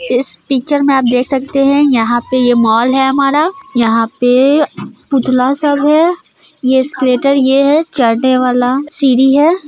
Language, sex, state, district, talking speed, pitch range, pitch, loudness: Hindi, female, Bihar, Muzaffarpur, 160 wpm, 250-290 Hz, 265 Hz, -12 LUFS